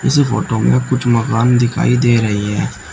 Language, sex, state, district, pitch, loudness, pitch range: Hindi, male, Uttar Pradesh, Shamli, 120 Hz, -14 LUFS, 105-125 Hz